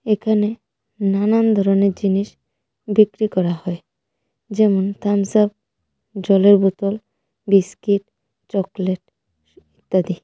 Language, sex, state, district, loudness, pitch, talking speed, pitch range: Bengali, female, Tripura, West Tripura, -18 LUFS, 200 Hz, 90 wpm, 195-210 Hz